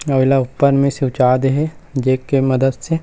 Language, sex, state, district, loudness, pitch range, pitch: Chhattisgarhi, male, Chhattisgarh, Rajnandgaon, -16 LUFS, 130-140 Hz, 135 Hz